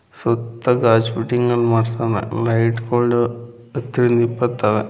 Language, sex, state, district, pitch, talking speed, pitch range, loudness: Kannada, male, Karnataka, Mysore, 115 Hz, 100 wpm, 115-120 Hz, -18 LUFS